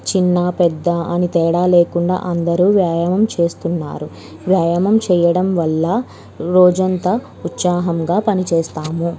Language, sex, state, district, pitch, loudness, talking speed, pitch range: Telugu, female, Andhra Pradesh, Krishna, 175 Hz, -16 LUFS, 90 wpm, 170-185 Hz